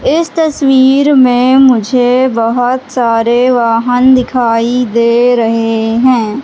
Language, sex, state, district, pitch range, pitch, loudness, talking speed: Hindi, female, Madhya Pradesh, Katni, 235-260 Hz, 245 Hz, -9 LUFS, 100 wpm